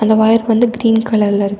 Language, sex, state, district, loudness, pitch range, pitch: Tamil, female, Tamil Nadu, Nilgiris, -13 LUFS, 210-225 Hz, 220 Hz